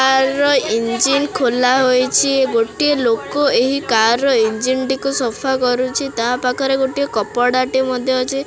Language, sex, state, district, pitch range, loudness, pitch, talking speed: Odia, male, Odisha, Khordha, 245-270 Hz, -16 LUFS, 260 Hz, 140 wpm